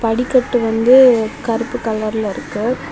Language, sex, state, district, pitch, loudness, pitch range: Tamil, female, Tamil Nadu, Kanyakumari, 230 Hz, -15 LUFS, 220-245 Hz